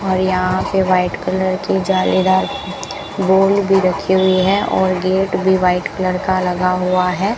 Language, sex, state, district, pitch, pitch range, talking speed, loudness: Hindi, female, Rajasthan, Bikaner, 185 Hz, 185-195 Hz, 170 wpm, -16 LUFS